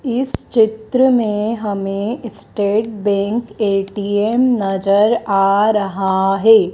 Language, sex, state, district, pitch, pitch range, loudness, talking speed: Hindi, female, Madhya Pradesh, Dhar, 210 Hz, 200-225 Hz, -16 LUFS, 100 wpm